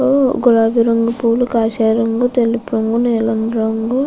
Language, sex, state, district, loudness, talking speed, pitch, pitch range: Telugu, female, Andhra Pradesh, Chittoor, -15 LUFS, 145 wpm, 230 Hz, 225-245 Hz